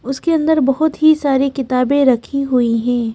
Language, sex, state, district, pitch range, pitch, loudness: Hindi, female, Madhya Pradesh, Bhopal, 250-300 Hz, 270 Hz, -15 LUFS